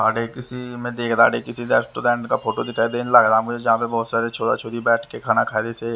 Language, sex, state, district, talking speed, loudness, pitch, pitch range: Hindi, male, Haryana, Rohtak, 250 wpm, -20 LUFS, 115 Hz, 115-120 Hz